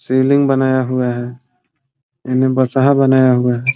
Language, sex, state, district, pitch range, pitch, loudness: Hindi, male, Bihar, Muzaffarpur, 125-135 Hz, 130 Hz, -14 LUFS